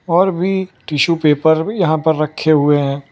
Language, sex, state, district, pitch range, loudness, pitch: Hindi, male, Gujarat, Valsad, 145-170 Hz, -15 LUFS, 155 Hz